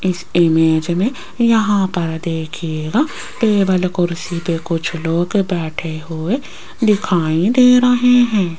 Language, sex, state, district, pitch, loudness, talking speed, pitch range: Hindi, female, Rajasthan, Jaipur, 175 Hz, -16 LUFS, 120 wpm, 165-210 Hz